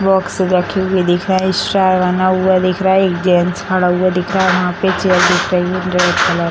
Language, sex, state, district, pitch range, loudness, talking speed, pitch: Hindi, female, Bihar, Samastipur, 180-190 Hz, -14 LUFS, 260 wpm, 185 Hz